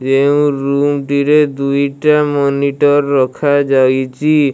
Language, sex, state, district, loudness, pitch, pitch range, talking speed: Odia, male, Odisha, Malkangiri, -13 LUFS, 140 Hz, 140-145 Hz, 80 wpm